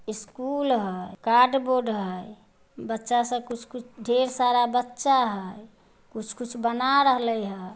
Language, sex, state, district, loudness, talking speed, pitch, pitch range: Magahi, female, Bihar, Samastipur, -25 LUFS, 125 wpm, 235 Hz, 215-250 Hz